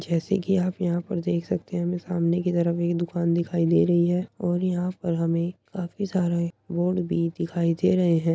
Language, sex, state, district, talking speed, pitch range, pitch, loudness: Hindi, female, Uttar Pradesh, Muzaffarnagar, 215 wpm, 170-180 Hz, 175 Hz, -25 LUFS